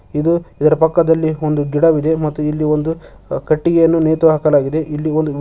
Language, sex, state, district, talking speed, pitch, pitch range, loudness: Kannada, male, Karnataka, Koppal, 145 wpm, 155 Hz, 150-160 Hz, -15 LUFS